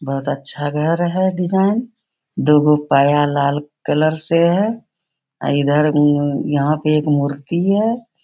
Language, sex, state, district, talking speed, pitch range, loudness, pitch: Hindi, female, Bihar, Bhagalpur, 145 wpm, 145-180 Hz, -17 LUFS, 150 Hz